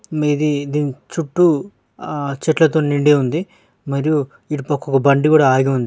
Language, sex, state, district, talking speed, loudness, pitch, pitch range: Telugu, male, Telangana, Nalgonda, 165 wpm, -17 LUFS, 150 Hz, 140-155 Hz